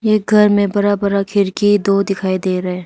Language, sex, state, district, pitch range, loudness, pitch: Hindi, female, Arunachal Pradesh, Lower Dibang Valley, 195-205 Hz, -15 LUFS, 200 Hz